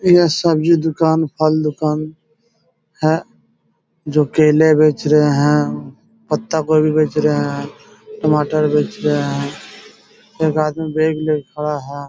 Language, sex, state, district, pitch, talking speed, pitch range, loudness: Hindi, male, Chhattisgarh, Raigarh, 155 Hz, 135 wpm, 150-160 Hz, -16 LUFS